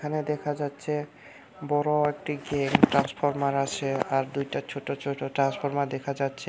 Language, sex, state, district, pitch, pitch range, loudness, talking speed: Bengali, male, Tripura, Unakoti, 140 Hz, 140-150 Hz, -27 LUFS, 130 wpm